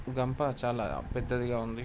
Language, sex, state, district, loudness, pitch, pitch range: Telugu, male, Telangana, Nalgonda, -33 LUFS, 120 Hz, 115-125 Hz